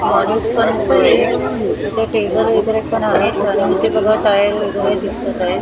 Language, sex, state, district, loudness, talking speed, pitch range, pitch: Marathi, female, Maharashtra, Mumbai Suburban, -15 LUFS, 115 wpm, 200-215 Hz, 205 Hz